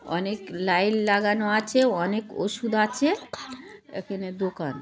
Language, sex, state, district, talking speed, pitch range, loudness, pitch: Bengali, female, West Bengal, Jhargram, 125 wpm, 185-215 Hz, -25 LUFS, 200 Hz